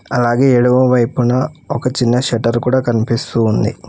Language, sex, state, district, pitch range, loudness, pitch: Telugu, male, Telangana, Hyderabad, 120-130 Hz, -15 LUFS, 120 Hz